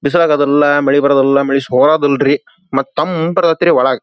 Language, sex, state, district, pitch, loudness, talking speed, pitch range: Kannada, male, Karnataka, Belgaum, 145 Hz, -12 LUFS, 150 wpm, 140-155 Hz